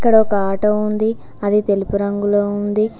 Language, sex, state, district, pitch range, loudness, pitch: Telugu, female, Telangana, Mahabubabad, 200-215 Hz, -18 LUFS, 205 Hz